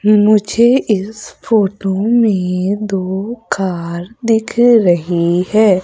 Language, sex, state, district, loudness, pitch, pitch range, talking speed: Hindi, female, Madhya Pradesh, Umaria, -14 LUFS, 205 Hz, 185-225 Hz, 90 wpm